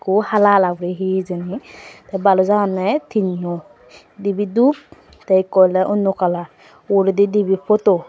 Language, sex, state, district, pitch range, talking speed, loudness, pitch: Chakma, female, Tripura, West Tripura, 185-205 Hz, 150 wpm, -17 LUFS, 195 Hz